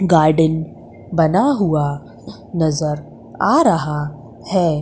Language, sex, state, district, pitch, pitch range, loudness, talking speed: Hindi, female, Madhya Pradesh, Umaria, 160 Hz, 150-175 Hz, -17 LUFS, 85 wpm